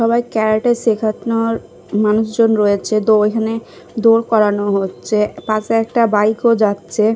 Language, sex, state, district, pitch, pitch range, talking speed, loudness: Bengali, female, Odisha, Khordha, 220 Hz, 210-225 Hz, 125 wpm, -16 LUFS